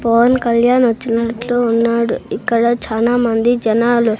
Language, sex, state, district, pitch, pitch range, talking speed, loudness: Telugu, male, Andhra Pradesh, Sri Satya Sai, 235 Hz, 230-240 Hz, 100 wpm, -15 LUFS